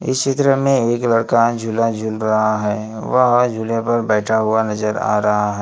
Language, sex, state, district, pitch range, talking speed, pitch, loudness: Hindi, male, Maharashtra, Gondia, 110-120 Hz, 190 wpm, 110 Hz, -17 LUFS